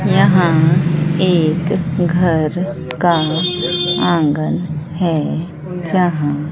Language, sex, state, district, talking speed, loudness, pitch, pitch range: Hindi, female, Bihar, Katihar, 65 wpm, -16 LUFS, 170 Hz, 155-175 Hz